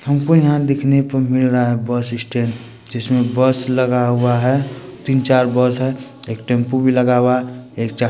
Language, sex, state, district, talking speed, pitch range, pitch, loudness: Hindi, male, Bihar, Purnia, 185 wpm, 120-130 Hz, 125 Hz, -16 LUFS